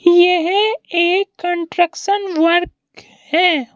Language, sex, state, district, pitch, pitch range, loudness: Hindi, female, Madhya Pradesh, Bhopal, 350 Hz, 345-380 Hz, -16 LUFS